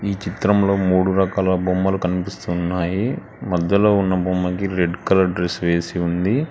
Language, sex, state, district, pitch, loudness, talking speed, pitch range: Telugu, male, Telangana, Hyderabad, 95 Hz, -20 LUFS, 130 wpm, 90-100 Hz